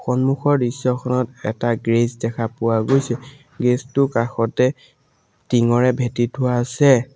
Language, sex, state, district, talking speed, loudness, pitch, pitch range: Assamese, male, Assam, Sonitpur, 110 wpm, -19 LUFS, 125 Hz, 115-135 Hz